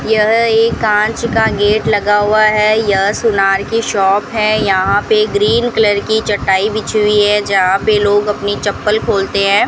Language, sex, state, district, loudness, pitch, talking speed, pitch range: Hindi, female, Rajasthan, Bikaner, -13 LUFS, 210 Hz, 180 wpm, 200-220 Hz